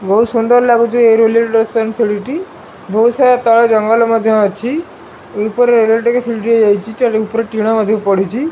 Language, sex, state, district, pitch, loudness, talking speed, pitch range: Odia, male, Odisha, Malkangiri, 230 Hz, -12 LUFS, 100 wpm, 220-235 Hz